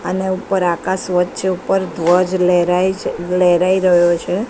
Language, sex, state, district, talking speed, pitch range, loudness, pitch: Gujarati, female, Gujarat, Gandhinagar, 145 wpm, 175-185 Hz, -16 LUFS, 180 Hz